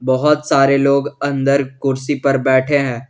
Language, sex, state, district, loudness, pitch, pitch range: Hindi, male, Jharkhand, Garhwa, -15 LUFS, 140 Hz, 135-140 Hz